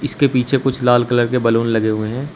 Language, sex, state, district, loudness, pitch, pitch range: Hindi, male, Uttar Pradesh, Shamli, -16 LUFS, 125 Hz, 115-135 Hz